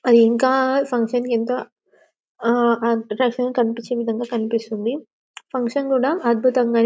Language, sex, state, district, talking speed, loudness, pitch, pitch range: Telugu, female, Telangana, Karimnagar, 115 wpm, -20 LUFS, 240 Hz, 230-255 Hz